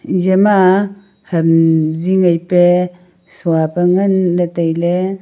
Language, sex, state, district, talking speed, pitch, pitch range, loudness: Wancho, female, Arunachal Pradesh, Longding, 125 wpm, 180 Hz, 170-185 Hz, -14 LUFS